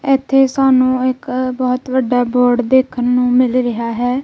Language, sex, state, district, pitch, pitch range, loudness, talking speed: Punjabi, female, Punjab, Kapurthala, 255 Hz, 245-260 Hz, -15 LUFS, 155 wpm